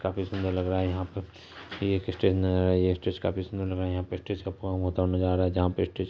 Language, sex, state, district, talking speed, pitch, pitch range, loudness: Hindi, male, Bihar, Purnia, 245 wpm, 95 Hz, 90-95 Hz, -28 LUFS